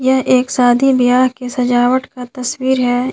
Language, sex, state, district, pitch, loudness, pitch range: Hindi, female, Jharkhand, Garhwa, 250 Hz, -14 LUFS, 245-260 Hz